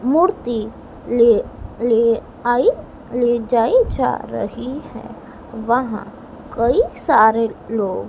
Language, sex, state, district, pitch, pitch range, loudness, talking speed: Hindi, female, Madhya Pradesh, Dhar, 240 Hz, 230-260 Hz, -18 LUFS, 90 wpm